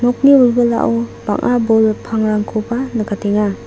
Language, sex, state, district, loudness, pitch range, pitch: Garo, female, Meghalaya, South Garo Hills, -15 LUFS, 215-245 Hz, 225 Hz